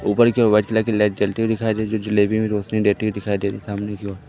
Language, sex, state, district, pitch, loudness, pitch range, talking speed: Hindi, male, Madhya Pradesh, Katni, 105 Hz, -20 LUFS, 100-110 Hz, 320 wpm